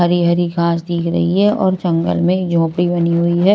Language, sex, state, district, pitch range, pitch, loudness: Hindi, female, Maharashtra, Washim, 170-180 Hz, 175 Hz, -16 LUFS